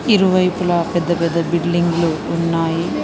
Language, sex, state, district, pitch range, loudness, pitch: Telugu, female, Telangana, Mahabubabad, 170-175 Hz, -17 LUFS, 170 Hz